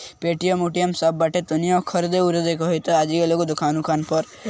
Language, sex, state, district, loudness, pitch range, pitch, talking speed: Bhojpuri, male, Bihar, East Champaran, -21 LUFS, 160-175 Hz, 170 Hz, 200 wpm